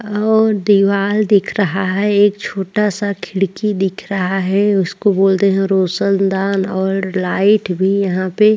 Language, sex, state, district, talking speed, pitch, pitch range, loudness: Hindi, female, Maharashtra, Chandrapur, 140 wpm, 195 Hz, 190-205 Hz, -15 LUFS